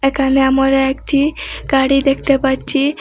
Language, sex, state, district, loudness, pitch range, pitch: Bengali, female, Assam, Hailakandi, -15 LUFS, 270-275 Hz, 270 Hz